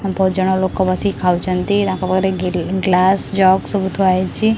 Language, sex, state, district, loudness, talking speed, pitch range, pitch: Odia, female, Odisha, Khordha, -16 LUFS, 170 wpm, 185-195 Hz, 190 Hz